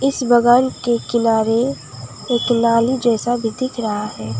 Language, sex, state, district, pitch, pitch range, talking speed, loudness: Hindi, female, West Bengal, Alipurduar, 235 Hz, 215-240 Hz, 150 wpm, -17 LUFS